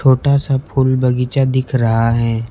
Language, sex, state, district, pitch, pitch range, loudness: Hindi, male, West Bengal, Alipurduar, 130 Hz, 115-135 Hz, -15 LUFS